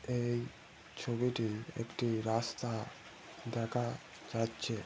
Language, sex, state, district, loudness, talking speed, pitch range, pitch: Bengali, male, West Bengal, Malda, -38 LUFS, 75 wpm, 115-120 Hz, 115 Hz